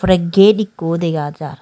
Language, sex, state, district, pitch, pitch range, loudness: Chakma, female, Tripura, Dhalai, 170 Hz, 155-195 Hz, -15 LUFS